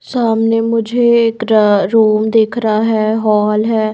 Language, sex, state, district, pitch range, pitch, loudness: Hindi, female, Bihar, Patna, 215-230 Hz, 225 Hz, -13 LUFS